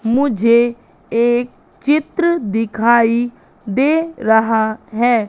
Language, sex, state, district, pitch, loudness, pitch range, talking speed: Hindi, female, Madhya Pradesh, Katni, 235 Hz, -16 LUFS, 225-265 Hz, 80 wpm